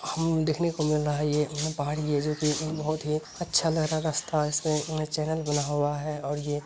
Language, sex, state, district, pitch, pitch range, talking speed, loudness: Hindi, male, Bihar, Bhagalpur, 150 Hz, 150-155 Hz, 145 wpm, -28 LUFS